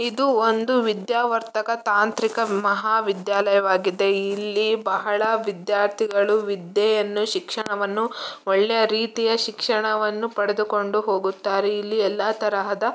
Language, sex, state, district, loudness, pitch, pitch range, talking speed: Kannada, female, Karnataka, Mysore, -22 LUFS, 210 Hz, 200-225 Hz, 85 wpm